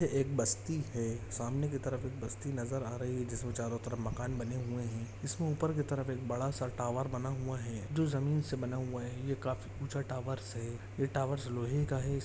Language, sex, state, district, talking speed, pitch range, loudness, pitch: Hindi, male, Jharkhand, Jamtara, 225 wpm, 120-135 Hz, -37 LUFS, 130 Hz